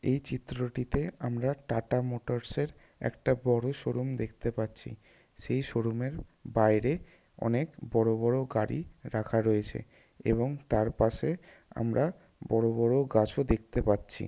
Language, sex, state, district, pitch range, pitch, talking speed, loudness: Bengali, male, West Bengal, North 24 Parganas, 115-135 Hz, 120 Hz, 130 wpm, -31 LUFS